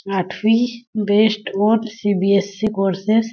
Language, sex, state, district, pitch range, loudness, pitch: Hindi, female, Chhattisgarh, Sarguja, 195-220 Hz, -18 LUFS, 210 Hz